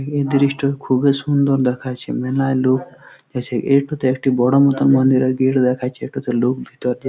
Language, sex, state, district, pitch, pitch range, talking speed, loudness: Bengali, male, West Bengal, Jhargram, 130 Hz, 125-140 Hz, 170 wpm, -18 LUFS